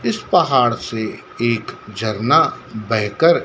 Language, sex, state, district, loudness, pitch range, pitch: Hindi, male, Madhya Pradesh, Dhar, -18 LUFS, 110-120 Hz, 115 Hz